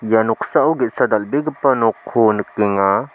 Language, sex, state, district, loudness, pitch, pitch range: Garo, male, Meghalaya, South Garo Hills, -17 LUFS, 110 Hz, 105-125 Hz